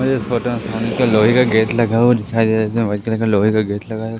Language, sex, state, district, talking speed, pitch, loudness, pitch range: Hindi, male, Madhya Pradesh, Katni, 315 wpm, 115 Hz, -16 LUFS, 110-120 Hz